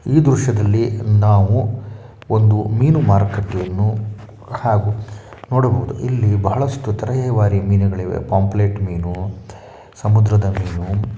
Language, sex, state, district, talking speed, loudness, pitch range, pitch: Kannada, male, Karnataka, Shimoga, 95 wpm, -17 LUFS, 100-115 Hz, 105 Hz